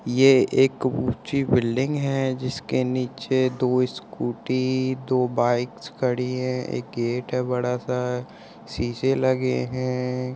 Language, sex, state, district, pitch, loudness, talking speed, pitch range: Hindi, male, Uttar Pradesh, Muzaffarnagar, 125 Hz, -24 LUFS, 120 wpm, 125-130 Hz